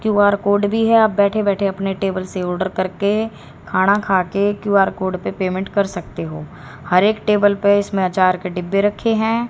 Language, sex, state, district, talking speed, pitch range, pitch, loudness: Hindi, female, Haryana, Rohtak, 195 wpm, 185-205 Hz, 200 Hz, -18 LUFS